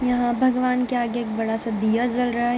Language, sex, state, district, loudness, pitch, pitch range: Hindi, female, Bihar, Darbhanga, -22 LUFS, 240 Hz, 230-250 Hz